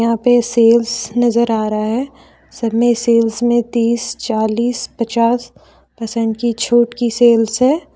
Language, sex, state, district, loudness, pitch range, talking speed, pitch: Hindi, female, Jharkhand, Deoghar, -15 LUFS, 230-240 Hz, 150 wpm, 235 Hz